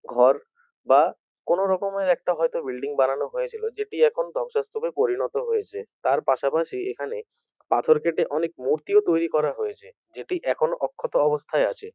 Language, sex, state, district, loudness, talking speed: Bengali, male, West Bengal, North 24 Parganas, -24 LUFS, 145 wpm